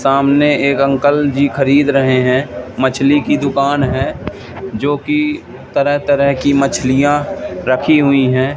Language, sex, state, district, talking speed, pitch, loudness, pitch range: Hindi, male, Madhya Pradesh, Katni, 140 wpm, 140 Hz, -14 LUFS, 130-145 Hz